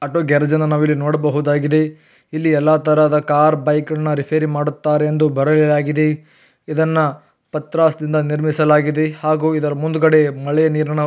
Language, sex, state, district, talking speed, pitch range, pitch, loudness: Kannada, male, Karnataka, Belgaum, 120 wpm, 150-155 Hz, 155 Hz, -16 LUFS